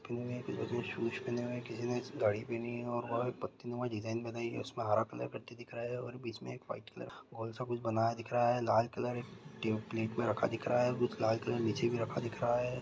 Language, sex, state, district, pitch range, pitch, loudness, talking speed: Maithili, male, Bihar, Supaul, 115-120 Hz, 120 Hz, -37 LUFS, 250 wpm